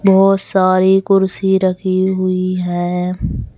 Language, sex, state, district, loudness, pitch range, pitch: Hindi, female, Madhya Pradesh, Bhopal, -15 LUFS, 185-190 Hz, 185 Hz